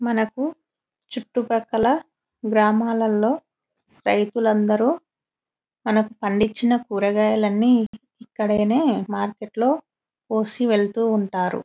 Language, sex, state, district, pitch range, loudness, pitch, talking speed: Telugu, female, Telangana, Nalgonda, 215-240 Hz, -21 LUFS, 220 Hz, 80 wpm